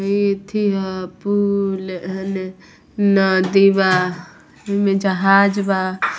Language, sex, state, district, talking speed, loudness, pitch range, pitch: Bhojpuri, female, Bihar, Muzaffarpur, 95 wpm, -18 LUFS, 185-200 Hz, 195 Hz